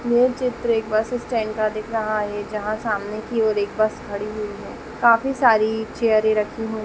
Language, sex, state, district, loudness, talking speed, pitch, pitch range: Hindi, female, Bihar, Jamui, -21 LUFS, 210 wpm, 220 Hz, 215-230 Hz